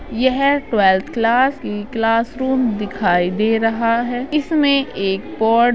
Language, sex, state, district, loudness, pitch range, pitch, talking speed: Hindi, female, Uttar Pradesh, Budaun, -17 LUFS, 210-260 Hz, 230 Hz, 125 wpm